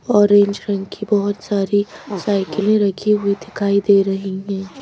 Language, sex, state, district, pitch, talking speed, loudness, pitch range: Hindi, female, Madhya Pradesh, Bhopal, 200 Hz, 150 wpm, -18 LUFS, 195-205 Hz